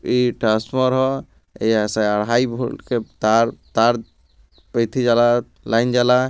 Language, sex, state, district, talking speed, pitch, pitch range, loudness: Bhojpuri, male, Bihar, Gopalganj, 95 wpm, 120 Hz, 110-125 Hz, -19 LUFS